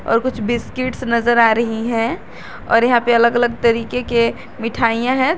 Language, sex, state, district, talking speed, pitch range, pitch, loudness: Hindi, female, Jharkhand, Garhwa, 190 wpm, 230-245 Hz, 235 Hz, -17 LUFS